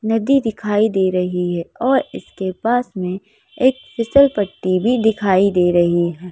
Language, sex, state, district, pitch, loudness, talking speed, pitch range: Hindi, female, Madhya Pradesh, Bhopal, 205 Hz, -17 LUFS, 150 wpm, 180-240 Hz